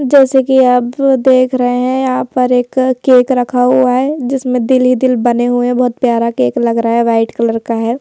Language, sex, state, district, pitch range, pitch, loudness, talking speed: Hindi, female, Madhya Pradesh, Bhopal, 240-260 Hz, 250 Hz, -12 LUFS, 230 wpm